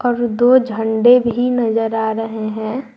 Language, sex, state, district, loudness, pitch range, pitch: Hindi, female, Jharkhand, Garhwa, -16 LUFS, 220-245 Hz, 230 Hz